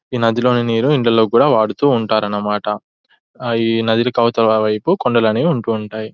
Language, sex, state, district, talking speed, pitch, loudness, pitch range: Telugu, male, Telangana, Nalgonda, 125 wpm, 115 Hz, -16 LUFS, 110-120 Hz